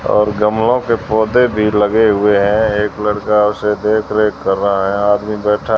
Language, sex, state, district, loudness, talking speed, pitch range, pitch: Hindi, male, Rajasthan, Jaisalmer, -14 LUFS, 185 wpm, 105-110 Hz, 105 Hz